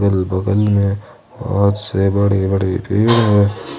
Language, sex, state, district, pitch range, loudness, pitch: Hindi, male, Jharkhand, Ranchi, 95-105 Hz, -16 LUFS, 100 Hz